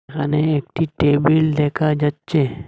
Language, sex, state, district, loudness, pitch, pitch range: Bengali, male, Assam, Hailakandi, -18 LUFS, 150 Hz, 145-155 Hz